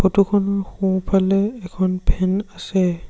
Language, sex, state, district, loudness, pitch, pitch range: Assamese, male, Assam, Sonitpur, -20 LUFS, 190 Hz, 185-200 Hz